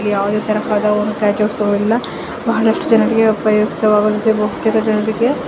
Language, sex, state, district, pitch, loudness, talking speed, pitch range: Kannada, female, Karnataka, Mysore, 215 Hz, -15 LUFS, 65 wpm, 210-220 Hz